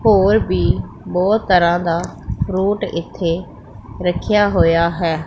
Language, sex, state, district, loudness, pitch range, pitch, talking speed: Punjabi, female, Punjab, Pathankot, -17 LUFS, 165-195 Hz, 175 Hz, 115 wpm